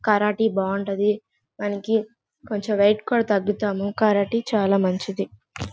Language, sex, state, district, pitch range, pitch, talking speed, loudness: Telugu, female, Andhra Pradesh, Guntur, 195-215 Hz, 205 Hz, 105 wpm, -23 LUFS